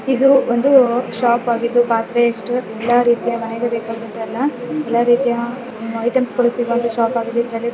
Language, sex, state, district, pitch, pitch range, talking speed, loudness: Kannada, female, Karnataka, Dakshina Kannada, 235 Hz, 230-245 Hz, 140 wpm, -17 LUFS